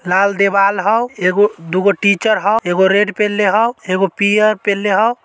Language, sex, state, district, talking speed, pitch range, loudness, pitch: Magahi, male, Bihar, Samastipur, 170 wpm, 195-215 Hz, -14 LUFS, 200 Hz